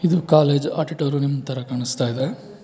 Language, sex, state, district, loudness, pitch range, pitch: Kannada, male, Karnataka, Bangalore, -21 LUFS, 130-160 Hz, 145 Hz